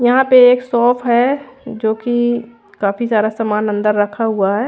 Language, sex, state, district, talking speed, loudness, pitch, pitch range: Hindi, female, Odisha, Khordha, 180 wpm, -15 LUFS, 235 Hz, 215-245 Hz